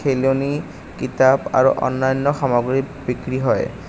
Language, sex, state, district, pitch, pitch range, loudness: Assamese, male, Assam, Kamrup Metropolitan, 135 Hz, 130-140 Hz, -19 LUFS